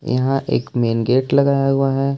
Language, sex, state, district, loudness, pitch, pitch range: Hindi, male, Jharkhand, Ranchi, -18 LUFS, 135 Hz, 125-135 Hz